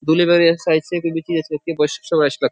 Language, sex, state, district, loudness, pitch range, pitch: Hindi, male, Uttar Pradesh, Jyotiba Phule Nagar, -18 LUFS, 160-175 Hz, 165 Hz